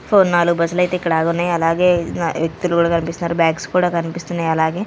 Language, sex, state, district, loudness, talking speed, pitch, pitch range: Telugu, female, Andhra Pradesh, Manyam, -17 LUFS, 185 wpm, 170 Hz, 165-175 Hz